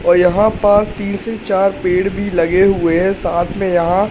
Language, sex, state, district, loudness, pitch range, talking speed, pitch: Hindi, male, Madhya Pradesh, Katni, -15 LUFS, 180-200 Hz, 205 wpm, 195 Hz